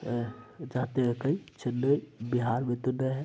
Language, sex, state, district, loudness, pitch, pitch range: Hindi, male, Bihar, Araria, -31 LUFS, 125 Hz, 120-135 Hz